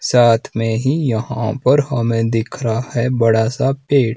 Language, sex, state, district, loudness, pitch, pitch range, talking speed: Hindi, male, Himachal Pradesh, Shimla, -17 LUFS, 120 Hz, 115-135 Hz, 175 wpm